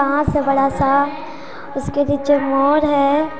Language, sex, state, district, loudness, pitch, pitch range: Hindi, female, Chhattisgarh, Sarguja, -17 LUFS, 285 Hz, 280-295 Hz